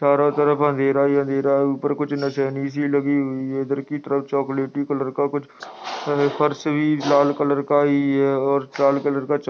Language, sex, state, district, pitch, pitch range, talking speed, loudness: Hindi, male, Uttar Pradesh, Jyotiba Phule Nagar, 140 Hz, 140-145 Hz, 210 wpm, -21 LUFS